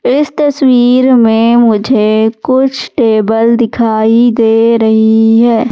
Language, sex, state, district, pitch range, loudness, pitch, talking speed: Hindi, female, Madhya Pradesh, Katni, 225-250 Hz, -9 LUFS, 230 Hz, 105 wpm